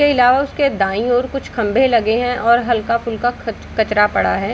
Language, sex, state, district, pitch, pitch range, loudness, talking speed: Hindi, female, Bihar, Darbhanga, 235 Hz, 225-255 Hz, -16 LUFS, 210 wpm